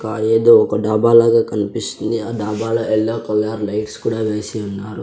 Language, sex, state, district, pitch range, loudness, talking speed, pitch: Telugu, male, Andhra Pradesh, Sri Satya Sai, 105-115 Hz, -17 LUFS, 165 wpm, 110 Hz